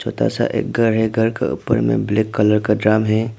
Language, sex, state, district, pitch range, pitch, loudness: Hindi, male, Arunachal Pradesh, Papum Pare, 105-115 Hz, 110 Hz, -18 LUFS